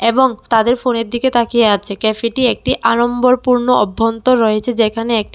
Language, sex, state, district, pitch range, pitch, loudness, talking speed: Bengali, female, Tripura, West Tripura, 225-250 Hz, 235 Hz, -14 LUFS, 145 wpm